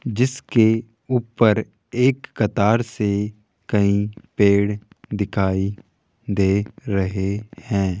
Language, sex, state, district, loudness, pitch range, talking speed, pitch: Hindi, male, Rajasthan, Jaipur, -21 LUFS, 100-115 Hz, 85 wpm, 105 Hz